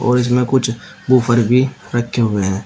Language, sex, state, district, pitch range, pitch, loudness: Hindi, male, Uttar Pradesh, Shamli, 115-130 Hz, 120 Hz, -16 LUFS